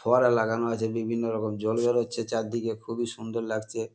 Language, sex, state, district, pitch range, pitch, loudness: Bengali, male, West Bengal, North 24 Parganas, 110-115 Hz, 115 Hz, -28 LUFS